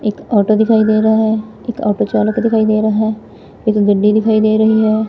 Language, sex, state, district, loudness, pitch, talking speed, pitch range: Punjabi, female, Punjab, Fazilka, -13 LUFS, 215 Hz, 225 wpm, 215-220 Hz